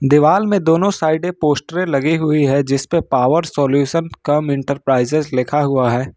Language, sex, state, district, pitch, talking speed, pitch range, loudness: Hindi, male, Jharkhand, Ranchi, 150 Hz, 155 wpm, 140-165 Hz, -16 LUFS